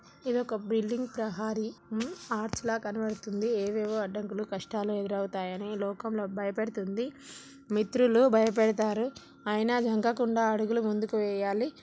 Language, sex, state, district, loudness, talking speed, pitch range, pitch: Telugu, female, Telangana, Nalgonda, -30 LUFS, 105 wpm, 210-230 Hz, 220 Hz